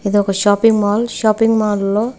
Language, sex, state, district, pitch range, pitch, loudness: Telugu, female, Telangana, Hyderabad, 205-225 Hz, 210 Hz, -15 LUFS